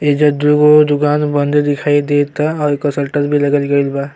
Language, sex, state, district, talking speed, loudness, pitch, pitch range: Bhojpuri, male, Uttar Pradesh, Gorakhpur, 185 wpm, -13 LUFS, 145 Hz, 145-150 Hz